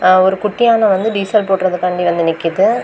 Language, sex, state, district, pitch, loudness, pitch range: Tamil, female, Tamil Nadu, Kanyakumari, 190 Hz, -14 LUFS, 180-210 Hz